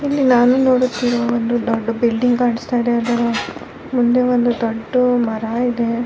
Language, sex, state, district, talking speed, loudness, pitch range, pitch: Kannada, female, Karnataka, Raichur, 150 wpm, -17 LUFS, 235-250 Hz, 240 Hz